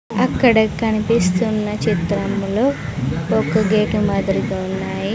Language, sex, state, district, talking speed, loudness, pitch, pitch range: Telugu, female, Andhra Pradesh, Sri Satya Sai, 80 wpm, -18 LUFS, 210 Hz, 195-220 Hz